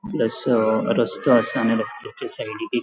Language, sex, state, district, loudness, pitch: Konkani, male, Goa, North and South Goa, -22 LUFS, 130 Hz